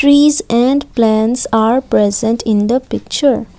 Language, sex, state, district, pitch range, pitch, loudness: English, female, Assam, Kamrup Metropolitan, 225-275 Hz, 240 Hz, -13 LUFS